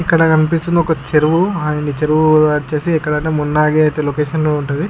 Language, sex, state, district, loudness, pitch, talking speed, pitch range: Telugu, male, Andhra Pradesh, Guntur, -15 LUFS, 155 Hz, 145 wpm, 150-160 Hz